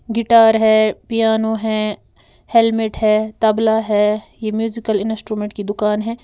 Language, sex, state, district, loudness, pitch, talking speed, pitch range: Hindi, female, Uttar Pradesh, Lalitpur, -17 LUFS, 220 Hz, 135 wpm, 215-225 Hz